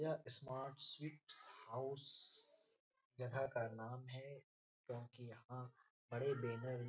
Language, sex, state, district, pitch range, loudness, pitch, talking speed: Hindi, male, Bihar, Jahanabad, 120-140 Hz, -48 LUFS, 130 Hz, 115 wpm